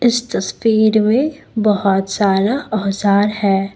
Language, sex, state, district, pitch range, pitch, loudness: Hindi, female, Assam, Kamrup Metropolitan, 195-225 Hz, 210 Hz, -16 LUFS